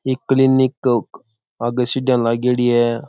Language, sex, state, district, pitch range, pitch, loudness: Rajasthani, male, Rajasthan, Churu, 120-130 Hz, 125 Hz, -17 LUFS